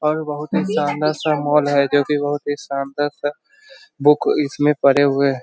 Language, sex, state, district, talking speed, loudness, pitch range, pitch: Hindi, male, Bihar, Jamui, 190 wpm, -18 LUFS, 145-150 Hz, 145 Hz